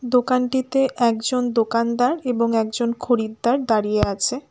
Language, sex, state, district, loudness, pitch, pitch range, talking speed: Bengali, female, West Bengal, Alipurduar, -21 LUFS, 245 Hz, 230-255 Hz, 105 wpm